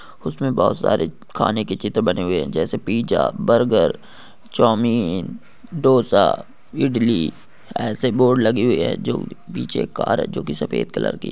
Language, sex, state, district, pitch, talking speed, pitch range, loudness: Hindi, male, Rajasthan, Nagaur, 120 Hz, 165 wpm, 115-130 Hz, -20 LUFS